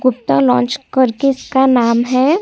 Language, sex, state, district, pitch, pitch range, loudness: Hindi, female, Chhattisgarh, Kabirdham, 255 Hz, 225-265 Hz, -14 LUFS